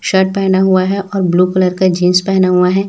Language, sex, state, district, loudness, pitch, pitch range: Hindi, male, Chhattisgarh, Raipur, -12 LUFS, 185 Hz, 180-190 Hz